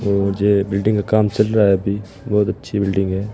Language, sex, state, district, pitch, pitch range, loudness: Hindi, male, Rajasthan, Bikaner, 100 Hz, 100-105 Hz, -18 LUFS